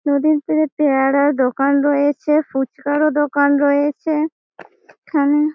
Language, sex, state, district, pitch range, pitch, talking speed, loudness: Bengali, female, West Bengal, Malda, 280-300 Hz, 290 Hz, 95 wpm, -17 LUFS